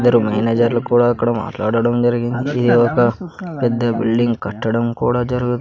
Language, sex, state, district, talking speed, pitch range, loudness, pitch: Telugu, male, Andhra Pradesh, Sri Satya Sai, 140 wpm, 115-120 Hz, -17 LUFS, 120 Hz